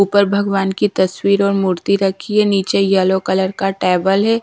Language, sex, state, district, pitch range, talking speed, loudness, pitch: Hindi, female, Bihar, Patna, 190-200 Hz, 190 wpm, -16 LUFS, 195 Hz